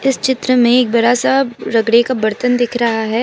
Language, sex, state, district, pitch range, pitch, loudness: Hindi, female, Assam, Kamrup Metropolitan, 230-250 Hz, 245 Hz, -14 LUFS